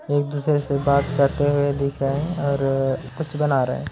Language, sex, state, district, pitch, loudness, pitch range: Hindi, male, Chhattisgarh, Korba, 140 Hz, -22 LUFS, 140-145 Hz